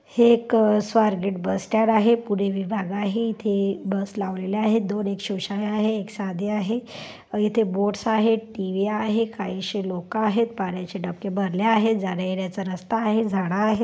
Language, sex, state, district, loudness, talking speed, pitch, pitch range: Marathi, male, Maharashtra, Pune, -23 LUFS, 155 wpm, 205 Hz, 195-220 Hz